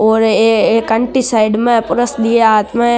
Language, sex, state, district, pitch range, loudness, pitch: Marwari, male, Rajasthan, Nagaur, 220-240 Hz, -12 LUFS, 225 Hz